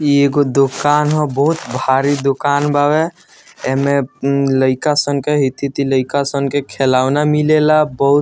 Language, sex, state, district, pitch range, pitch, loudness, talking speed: Bhojpuri, male, Bihar, Muzaffarpur, 135-150 Hz, 140 Hz, -15 LUFS, 155 wpm